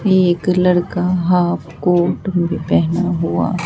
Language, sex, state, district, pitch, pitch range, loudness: Hindi, female, Bihar, Katihar, 180 Hz, 175-180 Hz, -16 LUFS